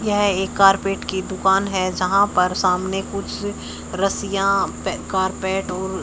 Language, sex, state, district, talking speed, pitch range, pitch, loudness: Hindi, male, Haryana, Charkhi Dadri, 140 wpm, 190-195 Hz, 195 Hz, -20 LUFS